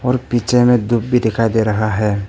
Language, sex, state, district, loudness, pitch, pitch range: Hindi, male, Arunachal Pradesh, Papum Pare, -16 LUFS, 115 Hz, 110-120 Hz